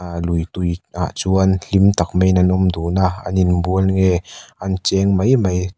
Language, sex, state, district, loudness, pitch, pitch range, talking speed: Mizo, male, Mizoram, Aizawl, -17 LUFS, 95 Hz, 90-95 Hz, 205 wpm